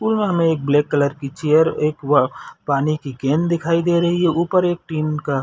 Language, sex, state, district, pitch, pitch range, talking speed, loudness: Hindi, male, Chhattisgarh, Sarguja, 155 Hz, 145-170 Hz, 230 wpm, -19 LUFS